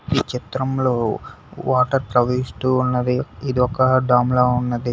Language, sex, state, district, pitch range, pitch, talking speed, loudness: Telugu, male, Telangana, Hyderabad, 125-130 Hz, 125 Hz, 120 wpm, -19 LUFS